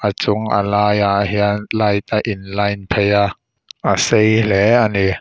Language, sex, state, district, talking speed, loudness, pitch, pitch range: Mizo, male, Mizoram, Aizawl, 175 wpm, -16 LUFS, 105 Hz, 100-105 Hz